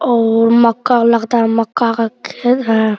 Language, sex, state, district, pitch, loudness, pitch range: Maithili, male, Bihar, Araria, 230 Hz, -13 LUFS, 225-235 Hz